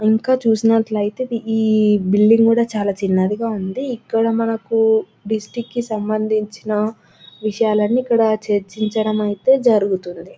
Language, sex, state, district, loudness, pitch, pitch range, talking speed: Telugu, female, Telangana, Nalgonda, -18 LUFS, 215 Hz, 210-225 Hz, 120 wpm